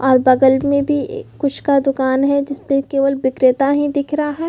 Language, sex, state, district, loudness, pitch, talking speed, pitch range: Hindi, female, Chhattisgarh, Bilaspur, -16 LUFS, 275 Hz, 215 wpm, 265-285 Hz